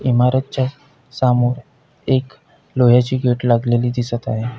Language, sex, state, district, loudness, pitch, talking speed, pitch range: Marathi, male, Maharashtra, Pune, -18 LUFS, 125 Hz, 105 wpm, 120-130 Hz